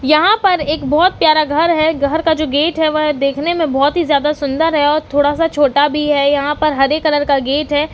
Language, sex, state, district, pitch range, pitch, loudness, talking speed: Hindi, female, Uttarakhand, Uttarkashi, 285-315 Hz, 300 Hz, -14 LUFS, 250 wpm